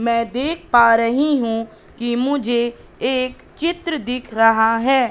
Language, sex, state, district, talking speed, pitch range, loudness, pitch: Hindi, female, Madhya Pradesh, Katni, 140 wpm, 230-270 Hz, -18 LUFS, 240 Hz